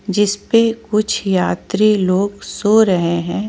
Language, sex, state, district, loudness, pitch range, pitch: Hindi, female, Jharkhand, Ranchi, -16 LUFS, 190-215 Hz, 205 Hz